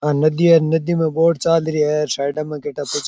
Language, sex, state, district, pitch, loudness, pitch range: Rajasthani, male, Rajasthan, Churu, 155 Hz, -17 LUFS, 150-165 Hz